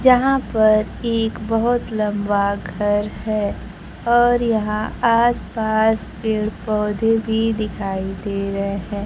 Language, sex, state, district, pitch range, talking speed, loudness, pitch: Hindi, female, Bihar, Kaimur, 205-225 Hz, 120 wpm, -20 LUFS, 215 Hz